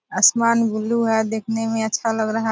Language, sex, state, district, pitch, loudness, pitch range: Hindi, female, Bihar, Purnia, 225 Hz, -20 LUFS, 220-230 Hz